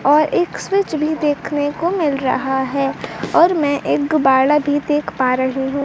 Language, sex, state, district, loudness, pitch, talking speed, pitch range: Hindi, female, Bihar, Kaimur, -17 LUFS, 290 Hz, 185 wpm, 270-310 Hz